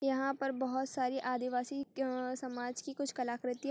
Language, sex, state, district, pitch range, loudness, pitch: Hindi, female, Chhattisgarh, Kabirdham, 250-270 Hz, -37 LUFS, 260 Hz